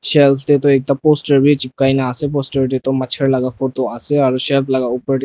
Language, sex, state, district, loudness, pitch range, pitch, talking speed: Nagamese, male, Nagaland, Dimapur, -15 LUFS, 130-140 Hz, 135 Hz, 240 wpm